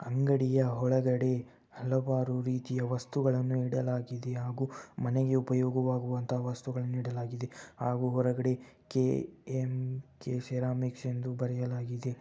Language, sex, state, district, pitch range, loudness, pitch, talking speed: Kannada, male, Karnataka, Bellary, 125-130 Hz, -32 LUFS, 125 Hz, 80 wpm